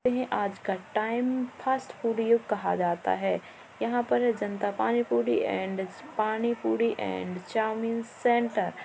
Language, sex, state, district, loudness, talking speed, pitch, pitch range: Hindi, female, Uttar Pradesh, Jalaun, -29 LUFS, 155 wpm, 220 Hz, 190-240 Hz